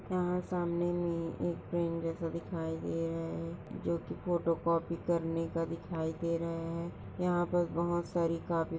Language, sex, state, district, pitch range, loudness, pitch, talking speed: Hindi, female, Chhattisgarh, Sarguja, 165-175 Hz, -35 LUFS, 165 Hz, 170 wpm